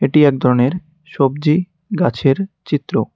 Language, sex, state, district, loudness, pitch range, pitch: Bengali, male, West Bengal, Cooch Behar, -17 LUFS, 135-175 Hz, 155 Hz